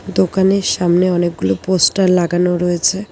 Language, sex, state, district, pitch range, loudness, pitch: Bengali, female, West Bengal, Cooch Behar, 175-190 Hz, -15 LUFS, 180 Hz